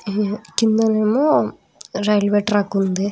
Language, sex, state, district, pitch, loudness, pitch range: Telugu, female, Andhra Pradesh, Visakhapatnam, 210 Hz, -18 LUFS, 200-220 Hz